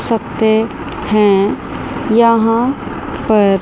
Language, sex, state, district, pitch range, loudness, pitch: Hindi, female, Chandigarh, Chandigarh, 210-230 Hz, -14 LUFS, 220 Hz